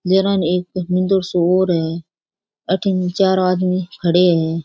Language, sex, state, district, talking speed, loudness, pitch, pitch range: Rajasthani, female, Rajasthan, Churu, 140 wpm, -17 LUFS, 180 Hz, 175-190 Hz